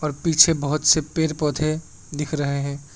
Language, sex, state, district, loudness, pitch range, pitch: Hindi, male, Assam, Kamrup Metropolitan, -20 LUFS, 145-155 Hz, 150 Hz